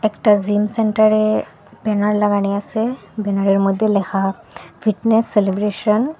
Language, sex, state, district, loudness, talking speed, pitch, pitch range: Bengali, female, Assam, Hailakandi, -18 LUFS, 115 wpm, 210 Hz, 200-220 Hz